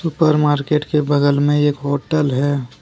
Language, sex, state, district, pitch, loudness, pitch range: Hindi, male, Jharkhand, Deoghar, 145 Hz, -17 LUFS, 145-150 Hz